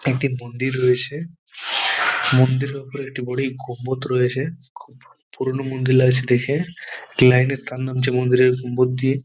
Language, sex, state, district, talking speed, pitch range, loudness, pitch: Bengali, male, West Bengal, Paschim Medinipur, 130 wpm, 125-135 Hz, -20 LUFS, 130 Hz